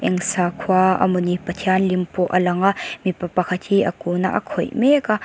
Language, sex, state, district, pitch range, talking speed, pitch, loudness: Mizo, female, Mizoram, Aizawl, 180-195 Hz, 215 wpm, 185 Hz, -20 LUFS